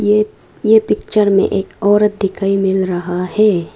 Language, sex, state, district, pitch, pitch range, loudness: Hindi, female, Arunachal Pradesh, Lower Dibang Valley, 195 Hz, 190-210 Hz, -15 LUFS